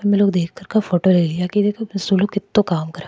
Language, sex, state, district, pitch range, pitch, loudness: Marwari, female, Rajasthan, Churu, 175-205 Hz, 195 Hz, -18 LUFS